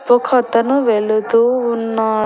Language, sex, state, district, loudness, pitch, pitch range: Telugu, female, Andhra Pradesh, Annamaya, -15 LUFS, 230 Hz, 220-245 Hz